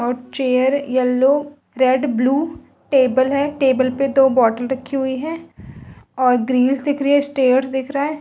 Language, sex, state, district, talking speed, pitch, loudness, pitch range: Hindi, female, Uttar Pradesh, Budaun, 170 wpm, 265 Hz, -18 LUFS, 255-280 Hz